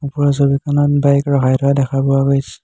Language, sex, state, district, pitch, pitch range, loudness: Assamese, male, Assam, Hailakandi, 140 Hz, 135-140 Hz, -15 LUFS